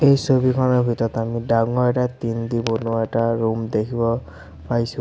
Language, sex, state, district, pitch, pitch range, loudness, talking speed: Assamese, male, Assam, Sonitpur, 115 Hz, 115-125 Hz, -21 LUFS, 155 wpm